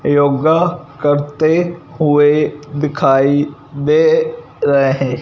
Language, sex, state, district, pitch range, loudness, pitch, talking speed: Hindi, male, Punjab, Fazilka, 145-160 Hz, -14 LUFS, 145 Hz, 70 wpm